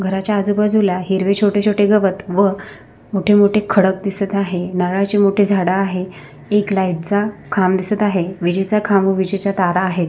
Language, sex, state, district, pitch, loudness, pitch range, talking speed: Marathi, female, Maharashtra, Sindhudurg, 195 Hz, -16 LUFS, 185-205 Hz, 165 wpm